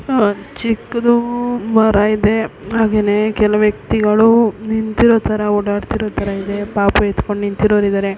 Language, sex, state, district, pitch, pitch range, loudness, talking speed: Kannada, female, Karnataka, Belgaum, 215 Hz, 205-225 Hz, -15 LUFS, 115 wpm